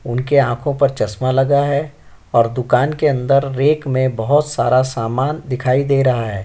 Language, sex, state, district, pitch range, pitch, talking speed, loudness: Hindi, male, Uttar Pradesh, Jyotiba Phule Nagar, 125-140 Hz, 130 Hz, 175 wpm, -16 LUFS